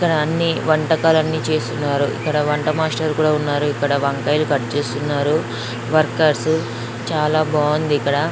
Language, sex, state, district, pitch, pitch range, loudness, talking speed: Telugu, female, Andhra Pradesh, Chittoor, 150 Hz, 140-155 Hz, -19 LUFS, 135 wpm